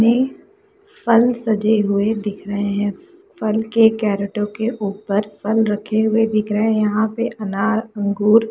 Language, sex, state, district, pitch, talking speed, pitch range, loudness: Hindi, female, Chhattisgarh, Sukma, 220 Hz, 160 wpm, 205-225 Hz, -19 LUFS